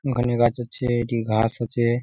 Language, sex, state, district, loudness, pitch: Bengali, male, West Bengal, Jhargram, -23 LUFS, 120 Hz